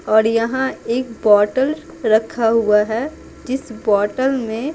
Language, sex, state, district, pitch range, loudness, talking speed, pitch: Hindi, female, Bihar, Patna, 220-260 Hz, -18 LUFS, 125 wpm, 230 Hz